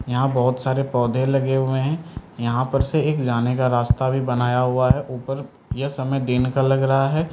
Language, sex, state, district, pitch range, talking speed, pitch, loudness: Hindi, male, Delhi, New Delhi, 125-135 Hz, 215 wpm, 130 Hz, -21 LUFS